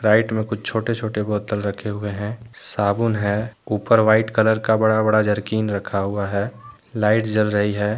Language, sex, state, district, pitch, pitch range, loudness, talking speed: Hindi, male, Jharkhand, Deoghar, 110 Hz, 105-110 Hz, -21 LUFS, 190 wpm